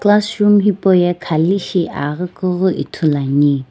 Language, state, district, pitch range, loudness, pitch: Sumi, Nagaland, Dimapur, 155-205 Hz, -15 LUFS, 180 Hz